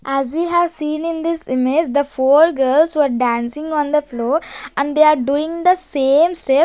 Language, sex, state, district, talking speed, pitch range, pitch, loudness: English, female, Maharashtra, Gondia, 210 wpm, 270-325 Hz, 300 Hz, -16 LUFS